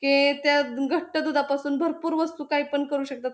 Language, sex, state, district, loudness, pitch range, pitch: Marathi, female, Maharashtra, Pune, -25 LUFS, 280-310 Hz, 290 Hz